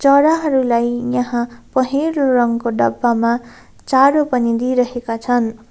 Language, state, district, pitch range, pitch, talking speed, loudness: Nepali, West Bengal, Darjeeling, 235-265 Hz, 245 Hz, 95 wpm, -17 LUFS